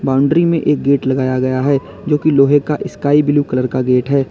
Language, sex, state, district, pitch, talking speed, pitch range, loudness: Hindi, male, Uttar Pradesh, Lalitpur, 140 Hz, 235 wpm, 130-150 Hz, -14 LUFS